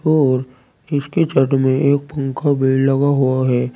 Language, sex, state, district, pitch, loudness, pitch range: Hindi, male, Uttar Pradesh, Saharanpur, 135 Hz, -17 LUFS, 130-145 Hz